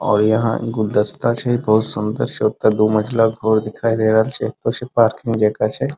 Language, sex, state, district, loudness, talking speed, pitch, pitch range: Maithili, male, Bihar, Muzaffarpur, -18 LUFS, 230 wpm, 110 Hz, 110-115 Hz